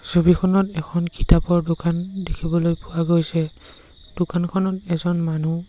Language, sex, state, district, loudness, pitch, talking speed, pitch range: Assamese, male, Assam, Sonitpur, -21 LUFS, 170 Hz, 105 wpm, 165-175 Hz